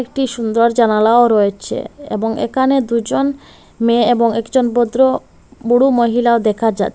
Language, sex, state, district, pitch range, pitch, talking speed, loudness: Bengali, female, Assam, Hailakandi, 225-260 Hz, 235 Hz, 130 wpm, -15 LUFS